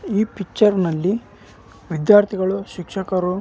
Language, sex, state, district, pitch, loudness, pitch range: Kannada, male, Karnataka, Raichur, 195 Hz, -19 LUFS, 180-205 Hz